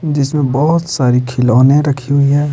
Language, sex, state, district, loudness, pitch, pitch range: Hindi, male, Bihar, Patna, -13 LUFS, 140 Hz, 130-145 Hz